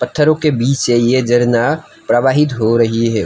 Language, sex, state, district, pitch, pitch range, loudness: Hindi, male, Assam, Kamrup Metropolitan, 125 Hz, 115-150 Hz, -14 LUFS